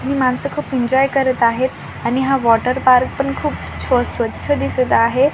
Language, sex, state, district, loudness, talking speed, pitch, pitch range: Marathi, female, Maharashtra, Washim, -17 LUFS, 155 wpm, 260 Hz, 250-275 Hz